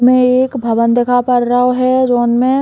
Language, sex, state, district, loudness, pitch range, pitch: Bundeli, female, Uttar Pradesh, Hamirpur, -12 LUFS, 245-255 Hz, 250 Hz